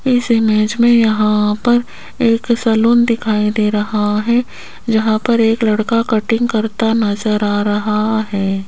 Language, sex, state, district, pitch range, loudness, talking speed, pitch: Hindi, female, Rajasthan, Jaipur, 210-230 Hz, -15 LUFS, 145 wpm, 220 Hz